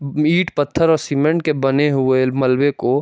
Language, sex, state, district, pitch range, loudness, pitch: Hindi, male, Jharkhand, Jamtara, 135-155 Hz, -17 LUFS, 145 Hz